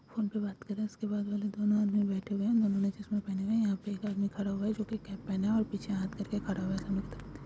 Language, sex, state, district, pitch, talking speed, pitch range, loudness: Hindi, female, Andhra Pradesh, Krishna, 205 Hz, 305 wpm, 200-210 Hz, -33 LUFS